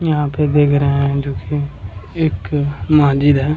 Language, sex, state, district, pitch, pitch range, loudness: Hindi, male, Bihar, Jamui, 145 Hz, 135-145 Hz, -16 LUFS